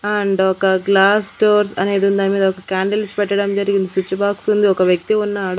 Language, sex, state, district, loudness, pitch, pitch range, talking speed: Telugu, female, Andhra Pradesh, Annamaya, -16 LUFS, 200 Hz, 190-205 Hz, 180 wpm